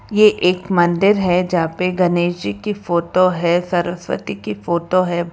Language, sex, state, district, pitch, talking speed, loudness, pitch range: Hindi, female, Karnataka, Bangalore, 175 Hz, 170 wpm, -17 LUFS, 175-185 Hz